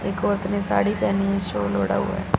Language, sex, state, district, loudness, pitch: Hindi, female, Punjab, Fazilka, -23 LUFS, 190 Hz